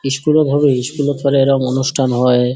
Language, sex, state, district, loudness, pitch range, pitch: Bengali, male, West Bengal, Dakshin Dinajpur, -15 LUFS, 130-145 Hz, 135 Hz